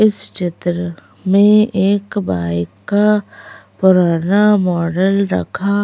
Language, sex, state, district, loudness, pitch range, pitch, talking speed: Hindi, female, Madhya Pradesh, Bhopal, -15 LUFS, 175-205 Hz, 190 Hz, 90 wpm